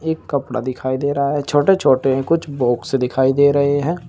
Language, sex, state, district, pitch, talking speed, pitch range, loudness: Hindi, male, Uttar Pradesh, Saharanpur, 140 Hz, 220 wpm, 130-145 Hz, -17 LUFS